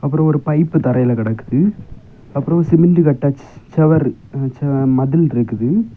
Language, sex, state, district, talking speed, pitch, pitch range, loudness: Tamil, male, Tamil Nadu, Kanyakumari, 120 wpm, 140 Hz, 125-160 Hz, -16 LUFS